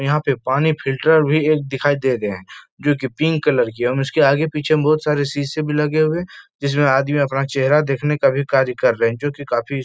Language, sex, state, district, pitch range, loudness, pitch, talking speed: Hindi, male, Uttar Pradesh, Etah, 135-150 Hz, -18 LUFS, 145 Hz, 250 wpm